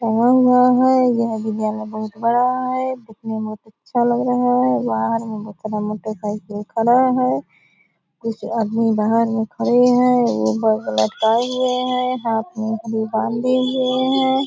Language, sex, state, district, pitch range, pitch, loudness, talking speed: Hindi, female, Bihar, Purnia, 215-250 Hz, 225 Hz, -19 LUFS, 150 wpm